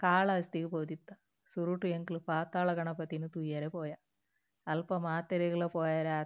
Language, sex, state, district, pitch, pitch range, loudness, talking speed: Tulu, female, Karnataka, Dakshina Kannada, 165 Hz, 160-180 Hz, -35 LUFS, 115 wpm